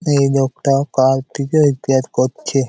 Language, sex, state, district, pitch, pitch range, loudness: Bengali, male, West Bengal, Malda, 135 Hz, 130-140 Hz, -16 LUFS